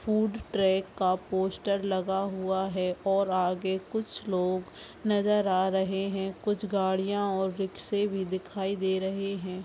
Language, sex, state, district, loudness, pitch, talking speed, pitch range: Hindi, female, Chhattisgarh, Bastar, -29 LUFS, 190 Hz, 150 wpm, 190-200 Hz